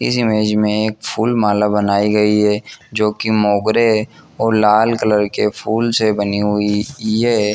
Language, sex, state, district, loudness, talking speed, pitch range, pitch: Hindi, male, Jharkhand, Jamtara, -16 LUFS, 165 wpm, 105-110 Hz, 105 Hz